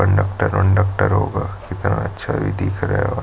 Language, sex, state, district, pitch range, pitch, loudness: Hindi, male, Chhattisgarh, Jashpur, 95-100 Hz, 100 Hz, -19 LUFS